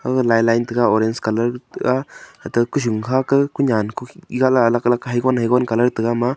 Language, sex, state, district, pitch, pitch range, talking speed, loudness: Wancho, male, Arunachal Pradesh, Longding, 120 Hz, 115-130 Hz, 95 wpm, -18 LUFS